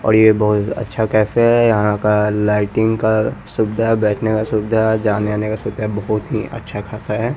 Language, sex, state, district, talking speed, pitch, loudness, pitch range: Hindi, male, Chandigarh, Chandigarh, 185 wpm, 110 Hz, -17 LUFS, 105-110 Hz